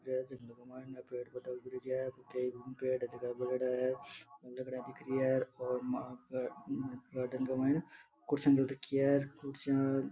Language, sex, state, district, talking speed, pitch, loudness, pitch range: Marwari, male, Rajasthan, Nagaur, 90 wpm, 130 Hz, -37 LUFS, 125-135 Hz